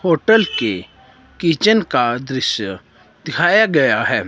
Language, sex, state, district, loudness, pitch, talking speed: Hindi, male, Himachal Pradesh, Shimla, -16 LUFS, 160 Hz, 110 wpm